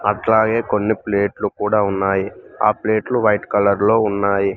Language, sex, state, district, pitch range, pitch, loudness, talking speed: Telugu, male, Telangana, Mahabubabad, 100-110 Hz, 105 Hz, -18 LUFS, 145 wpm